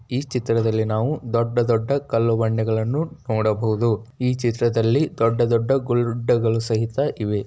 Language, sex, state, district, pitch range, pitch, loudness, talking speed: Kannada, male, Karnataka, Bijapur, 110-125 Hz, 115 Hz, -21 LUFS, 120 wpm